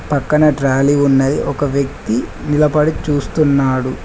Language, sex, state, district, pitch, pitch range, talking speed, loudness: Telugu, male, Telangana, Mahabubabad, 140 Hz, 135-150 Hz, 105 wpm, -15 LUFS